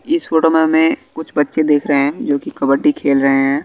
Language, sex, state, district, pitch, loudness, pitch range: Hindi, male, Bihar, West Champaran, 150 Hz, -15 LUFS, 140-160 Hz